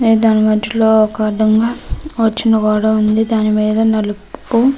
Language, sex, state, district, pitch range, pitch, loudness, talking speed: Telugu, female, Andhra Pradesh, Guntur, 215-225 Hz, 220 Hz, -13 LUFS, 125 wpm